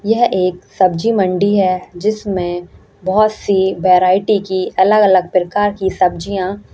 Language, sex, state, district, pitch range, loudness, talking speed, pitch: Hindi, female, Uttarakhand, Uttarkashi, 185-205 Hz, -15 LUFS, 135 wpm, 190 Hz